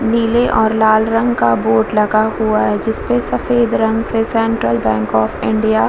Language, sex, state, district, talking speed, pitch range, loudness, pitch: Hindi, female, Bihar, Vaishali, 185 wpm, 210-225 Hz, -15 LUFS, 220 Hz